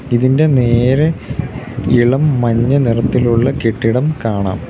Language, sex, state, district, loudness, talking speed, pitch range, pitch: Malayalam, male, Kerala, Kollam, -14 LUFS, 90 wpm, 115-135 Hz, 125 Hz